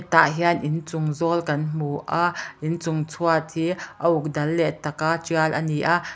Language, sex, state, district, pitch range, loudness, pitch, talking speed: Mizo, female, Mizoram, Aizawl, 155-170 Hz, -23 LUFS, 160 Hz, 185 wpm